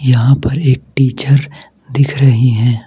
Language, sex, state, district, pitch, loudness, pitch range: Hindi, male, Mizoram, Aizawl, 135 Hz, -12 LUFS, 125-140 Hz